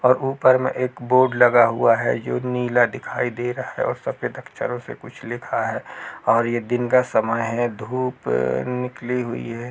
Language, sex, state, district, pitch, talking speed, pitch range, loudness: Hindi, male, Uttar Pradesh, Jalaun, 120 Hz, 190 wpm, 120-125 Hz, -21 LUFS